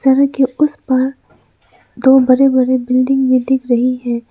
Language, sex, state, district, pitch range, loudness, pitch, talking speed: Hindi, female, Arunachal Pradesh, Lower Dibang Valley, 255-265 Hz, -13 LUFS, 260 Hz, 165 wpm